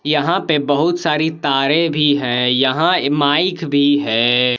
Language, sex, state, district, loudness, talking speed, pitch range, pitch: Hindi, male, Jharkhand, Palamu, -15 LUFS, 145 wpm, 135-155 Hz, 145 Hz